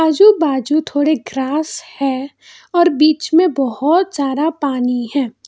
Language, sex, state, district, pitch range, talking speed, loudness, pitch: Hindi, female, Karnataka, Bangalore, 265-320 Hz, 130 wpm, -16 LUFS, 295 Hz